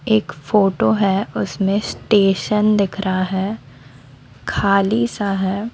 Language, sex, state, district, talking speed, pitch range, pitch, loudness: Hindi, female, Odisha, Sambalpur, 115 wpm, 175-205 Hz, 195 Hz, -18 LUFS